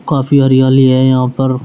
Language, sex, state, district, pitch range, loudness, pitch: Hindi, male, Uttar Pradesh, Shamli, 130-135 Hz, -10 LUFS, 130 Hz